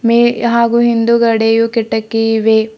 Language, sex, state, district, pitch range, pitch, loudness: Kannada, female, Karnataka, Bidar, 225-235 Hz, 230 Hz, -12 LUFS